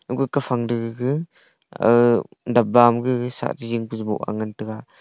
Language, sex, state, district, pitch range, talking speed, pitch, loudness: Wancho, male, Arunachal Pradesh, Longding, 115-125 Hz, 155 wpm, 120 Hz, -21 LUFS